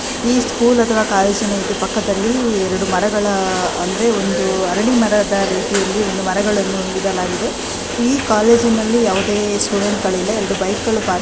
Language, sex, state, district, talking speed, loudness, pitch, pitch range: Kannada, female, Karnataka, Dakshina Kannada, 120 wpm, -16 LUFS, 205 Hz, 195-225 Hz